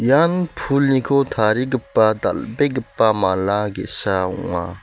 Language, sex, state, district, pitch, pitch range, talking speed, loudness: Garo, male, Meghalaya, West Garo Hills, 110 Hz, 95-140 Hz, 85 wpm, -19 LUFS